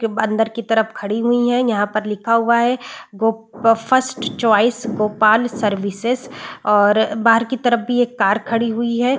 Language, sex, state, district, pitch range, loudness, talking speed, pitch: Hindi, female, Bihar, Saran, 215-240 Hz, -17 LUFS, 175 wpm, 230 Hz